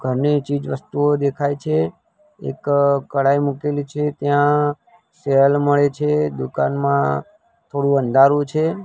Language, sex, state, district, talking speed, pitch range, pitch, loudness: Gujarati, male, Gujarat, Gandhinagar, 115 wpm, 135-150 Hz, 145 Hz, -19 LUFS